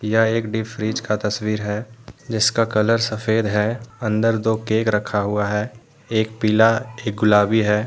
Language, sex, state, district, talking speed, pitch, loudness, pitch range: Hindi, male, Jharkhand, Deoghar, 170 wpm, 110 Hz, -20 LUFS, 105-115 Hz